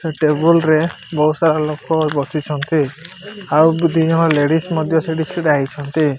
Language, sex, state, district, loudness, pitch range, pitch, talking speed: Odia, male, Odisha, Malkangiri, -16 LUFS, 150-165 Hz, 160 Hz, 135 wpm